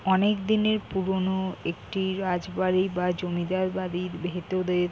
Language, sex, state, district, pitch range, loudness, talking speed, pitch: Bengali, female, West Bengal, Jhargram, 180-190 Hz, -27 LUFS, 85 wpm, 185 Hz